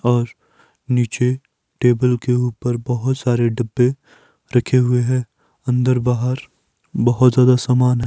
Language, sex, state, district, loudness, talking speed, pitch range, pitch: Hindi, male, Himachal Pradesh, Shimla, -18 LUFS, 125 wpm, 120-125 Hz, 125 Hz